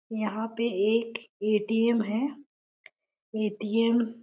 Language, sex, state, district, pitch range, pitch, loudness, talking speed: Hindi, female, Chhattisgarh, Sarguja, 215-235 Hz, 225 Hz, -28 LUFS, 100 wpm